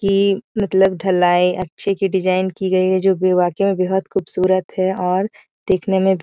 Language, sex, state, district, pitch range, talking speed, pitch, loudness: Hindi, female, Bihar, Jahanabad, 185-195 Hz, 185 wpm, 190 Hz, -18 LUFS